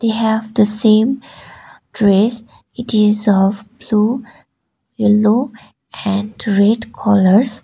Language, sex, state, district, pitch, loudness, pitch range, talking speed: English, female, Sikkim, Gangtok, 215 Hz, -15 LUFS, 210-230 Hz, 100 wpm